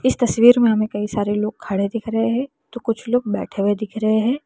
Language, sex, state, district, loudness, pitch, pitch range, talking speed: Hindi, female, Uttar Pradesh, Lalitpur, -19 LUFS, 220 Hz, 205-240 Hz, 255 wpm